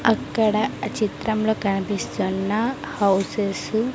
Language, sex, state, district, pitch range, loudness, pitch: Telugu, female, Andhra Pradesh, Sri Satya Sai, 200-220 Hz, -23 LUFS, 210 Hz